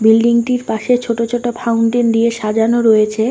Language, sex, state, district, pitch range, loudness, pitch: Bengali, female, West Bengal, North 24 Parganas, 225-240 Hz, -14 LUFS, 230 Hz